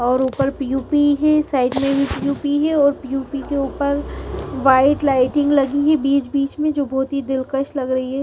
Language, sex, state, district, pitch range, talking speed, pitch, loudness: Hindi, female, Haryana, Charkhi Dadri, 270-285 Hz, 195 wpm, 275 Hz, -18 LUFS